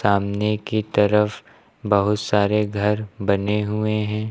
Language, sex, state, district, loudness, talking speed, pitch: Hindi, male, Uttar Pradesh, Lucknow, -21 LUFS, 125 wpm, 105 Hz